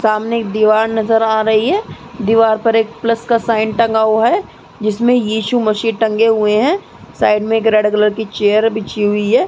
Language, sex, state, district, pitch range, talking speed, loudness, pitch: Hindi, female, Uttar Pradesh, Muzaffarnagar, 215-230 Hz, 195 wpm, -14 LUFS, 220 Hz